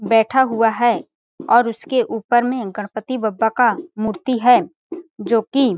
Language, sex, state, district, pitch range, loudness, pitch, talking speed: Hindi, female, Chhattisgarh, Balrampur, 225-255 Hz, -18 LUFS, 240 Hz, 145 wpm